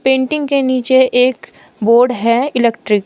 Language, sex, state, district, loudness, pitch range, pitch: Hindi, female, Uttar Pradesh, Shamli, -13 LUFS, 235-260 Hz, 250 Hz